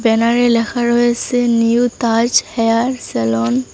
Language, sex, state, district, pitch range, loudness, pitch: Bengali, female, Assam, Hailakandi, 225-240 Hz, -15 LUFS, 235 Hz